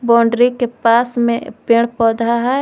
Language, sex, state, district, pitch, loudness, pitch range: Hindi, female, Jharkhand, Garhwa, 235 Hz, -15 LUFS, 230-245 Hz